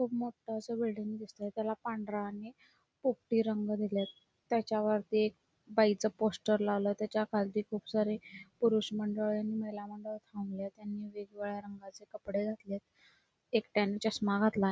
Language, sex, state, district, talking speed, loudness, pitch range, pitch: Marathi, female, Karnataka, Belgaum, 145 wpm, -35 LUFS, 205-220 Hz, 215 Hz